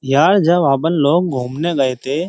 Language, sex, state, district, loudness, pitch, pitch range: Hindi, male, Uttar Pradesh, Jyotiba Phule Nagar, -15 LUFS, 150 Hz, 135-175 Hz